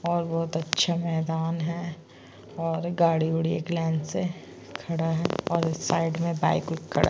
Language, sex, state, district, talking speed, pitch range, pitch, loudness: Hindi, female, Uttarakhand, Tehri Garhwal, 160 wpm, 165-170 Hz, 165 Hz, -27 LUFS